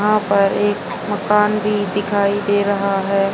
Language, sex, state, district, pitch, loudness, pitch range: Hindi, female, Haryana, Charkhi Dadri, 205 Hz, -17 LUFS, 200-210 Hz